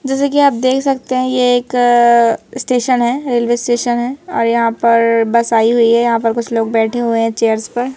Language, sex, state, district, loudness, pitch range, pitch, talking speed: Hindi, female, Madhya Pradesh, Bhopal, -14 LUFS, 230-255 Hz, 240 Hz, 220 wpm